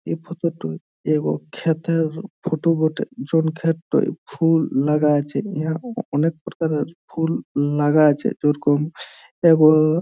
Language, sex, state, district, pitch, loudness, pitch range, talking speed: Bengali, male, West Bengal, Jhargram, 160 Hz, -21 LUFS, 150-165 Hz, 145 wpm